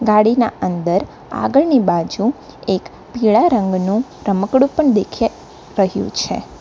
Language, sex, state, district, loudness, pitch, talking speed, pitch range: Gujarati, female, Gujarat, Valsad, -17 LUFS, 220 Hz, 120 wpm, 200-260 Hz